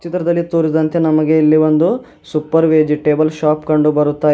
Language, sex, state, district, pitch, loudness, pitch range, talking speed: Kannada, male, Karnataka, Bidar, 155 Hz, -14 LUFS, 150-165 Hz, 150 wpm